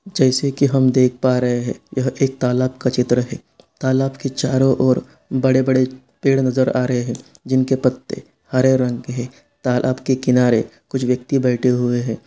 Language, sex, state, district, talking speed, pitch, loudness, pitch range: Hindi, male, Bihar, Saran, 180 wpm, 130 Hz, -18 LUFS, 125-130 Hz